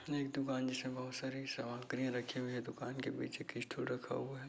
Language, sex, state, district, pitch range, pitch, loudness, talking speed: Hindi, male, Chhattisgarh, Bastar, 125-135 Hz, 130 Hz, -42 LUFS, 255 wpm